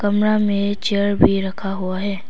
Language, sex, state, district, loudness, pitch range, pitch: Hindi, female, Arunachal Pradesh, Papum Pare, -19 LUFS, 195-205 Hz, 200 Hz